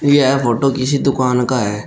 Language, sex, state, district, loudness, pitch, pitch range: Hindi, male, Uttar Pradesh, Shamli, -15 LUFS, 130 Hz, 125-140 Hz